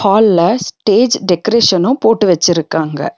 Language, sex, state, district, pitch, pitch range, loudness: Tamil, female, Tamil Nadu, Nilgiris, 195 Hz, 175-225 Hz, -12 LUFS